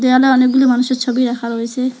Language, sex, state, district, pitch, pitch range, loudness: Bengali, female, West Bengal, Alipurduar, 255 Hz, 245-255 Hz, -14 LUFS